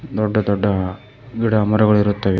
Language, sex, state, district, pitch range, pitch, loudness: Kannada, male, Karnataka, Koppal, 100-110 Hz, 105 Hz, -18 LUFS